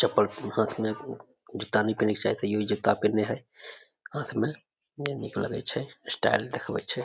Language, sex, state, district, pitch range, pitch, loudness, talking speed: Maithili, male, Bihar, Samastipur, 105-135 Hz, 110 Hz, -29 LUFS, 195 wpm